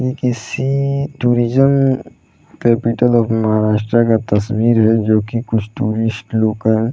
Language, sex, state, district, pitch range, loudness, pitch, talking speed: Hindi, male, Bihar, Saran, 110-125 Hz, -16 LUFS, 115 Hz, 140 wpm